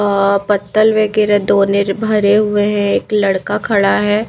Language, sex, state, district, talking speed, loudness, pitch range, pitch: Hindi, female, Maharashtra, Mumbai Suburban, 210 wpm, -14 LUFS, 200-210 Hz, 205 Hz